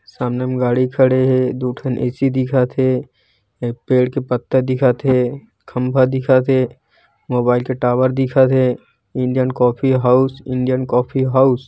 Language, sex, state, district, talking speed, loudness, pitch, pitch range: Hindi, male, Chhattisgarh, Bilaspur, 150 wpm, -17 LUFS, 130 Hz, 125-130 Hz